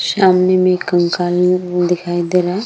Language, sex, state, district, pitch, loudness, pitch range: Hindi, female, Bihar, Vaishali, 180 Hz, -15 LUFS, 175-185 Hz